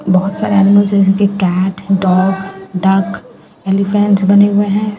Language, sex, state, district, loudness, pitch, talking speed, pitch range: Hindi, female, Bihar, Katihar, -12 LUFS, 195 Hz, 145 wpm, 190-200 Hz